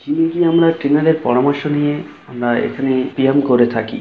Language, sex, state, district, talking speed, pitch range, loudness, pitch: Bengali, male, West Bengal, Kolkata, 135 wpm, 125-150 Hz, -16 LUFS, 140 Hz